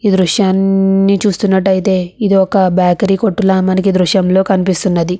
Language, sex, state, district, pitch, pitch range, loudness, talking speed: Telugu, female, Andhra Pradesh, Visakhapatnam, 190 Hz, 185-195 Hz, -12 LUFS, 115 wpm